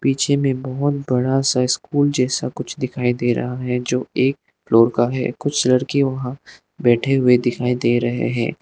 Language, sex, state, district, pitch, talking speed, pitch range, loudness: Hindi, male, Arunachal Pradesh, Lower Dibang Valley, 125 Hz, 180 wpm, 125-135 Hz, -19 LUFS